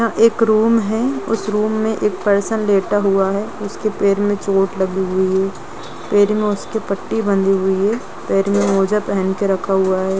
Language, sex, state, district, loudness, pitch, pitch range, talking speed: Hindi, female, Bihar, Gopalganj, -17 LUFS, 200 Hz, 195-215 Hz, 195 wpm